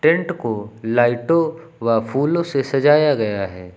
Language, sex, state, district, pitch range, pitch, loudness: Hindi, male, Uttar Pradesh, Lucknow, 110-160 Hz, 135 Hz, -19 LUFS